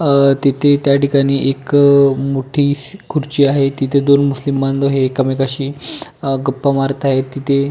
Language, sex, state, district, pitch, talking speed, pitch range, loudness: Marathi, male, Maharashtra, Pune, 140 Hz, 150 wpm, 135-140 Hz, -15 LUFS